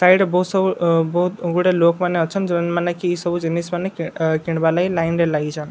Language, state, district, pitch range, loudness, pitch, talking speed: Sambalpuri, Odisha, Sambalpur, 165-180 Hz, -19 LUFS, 175 Hz, 250 wpm